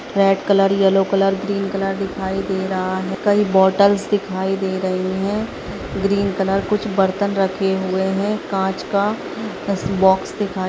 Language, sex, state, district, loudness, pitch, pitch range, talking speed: Hindi, female, Bihar, Bhagalpur, -19 LUFS, 195 Hz, 190-200 Hz, 155 wpm